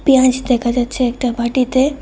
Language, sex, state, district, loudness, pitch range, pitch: Bengali, female, Tripura, West Tripura, -16 LUFS, 240-260 Hz, 255 Hz